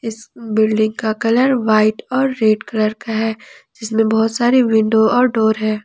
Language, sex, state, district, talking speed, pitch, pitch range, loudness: Hindi, female, Jharkhand, Ranchi, 165 wpm, 220 Hz, 215-235 Hz, -16 LUFS